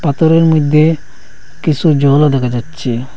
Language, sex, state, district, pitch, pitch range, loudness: Bengali, male, Assam, Hailakandi, 150 Hz, 130-160 Hz, -12 LUFS